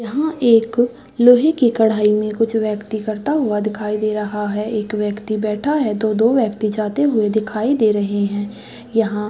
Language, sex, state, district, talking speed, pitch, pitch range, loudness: Hindi, female, Chhattisgarh, Raigarh, 180 wpm, 215 Hz, 210-235 Hz, -18 LUFS